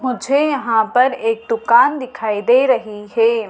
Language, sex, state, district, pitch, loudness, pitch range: Hindi, female, Madhya Pradesh, Dhar, 255 Hz, -16 LUFS, 225-290 Hz